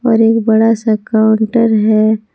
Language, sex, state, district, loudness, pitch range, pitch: Hindi, female, Jharkhand, Palamu, -12 LUFS, 220-225 Hz, 220 Hz